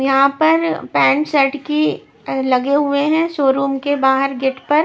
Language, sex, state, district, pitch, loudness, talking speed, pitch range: Hindi, female, Maharashtra, Washim, 280 Hz, -16 LUFS, 160 wpm, 270-300 Hz